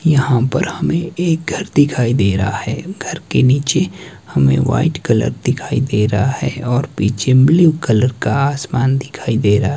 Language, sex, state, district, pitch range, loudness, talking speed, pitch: Hindi, male, Himachal Pradesh, Shimla, 110-150 Hz, -16 LUFS, 170 wpm, 130 Hz